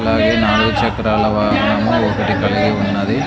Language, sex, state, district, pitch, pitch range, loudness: Telugu, male, Andhra Pradesh, Sri Satya Sai, 105 Hz, 105-110 Hz, -15 LUFS